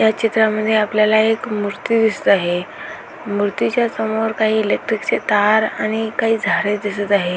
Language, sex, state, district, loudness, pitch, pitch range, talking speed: Marathi, female, Maharashtra, Aurangabad, -17 LUFS, 215 Hz, 205-220 Hz, 140 wpm